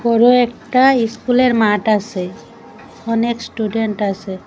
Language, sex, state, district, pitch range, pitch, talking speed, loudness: Bengali, female, Assam, Hailakandi, 210-240 Hz, 230 Hz, 105 wpm, -16 LUFS